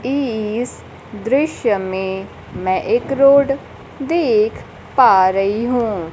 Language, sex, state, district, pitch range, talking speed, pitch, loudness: Hindi, female, Bihar, Kaimur, 190-275 Hz, 100 wpm, 235 Hz, -17 LUFS